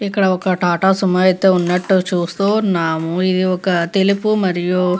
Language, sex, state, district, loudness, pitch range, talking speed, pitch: Telugu, female, Andhra Pradesh, Visakhapatnam, -16 LUFS, 180-195 Hz, 145 wpm, 185 Hz